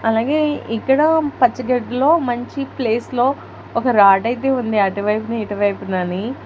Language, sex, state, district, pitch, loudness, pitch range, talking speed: Telugu, female, Telangana, Hyderabad, 240 Hz, -18 LUFS, 215-265 Hz, 140 wpm